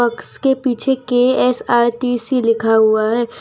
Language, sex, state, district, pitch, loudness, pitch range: Hindi, female, Gujarat, Valsad, 245 Hz, -16 LUFS, 230-255 Hz